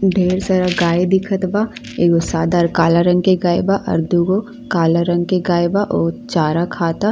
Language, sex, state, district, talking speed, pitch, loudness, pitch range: Bhojpuri, female, Uttar Pradesh, Ghazipur, 200 wpm, 175 Hz, -16 LUFS, 170-190 Hz